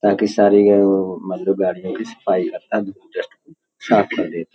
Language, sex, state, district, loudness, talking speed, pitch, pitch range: Hindi, male, Uttar Pradesh, Hamirpur, -18 LUFS, 130 wpm, 100 Hz, 95-105 Hz